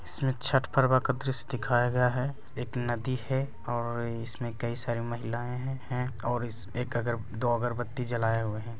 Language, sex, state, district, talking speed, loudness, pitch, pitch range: Hindi, male, Bihar, Bhagalpur, 175 wpm, -31 LUFS, 120 Hz, 120-130 Hz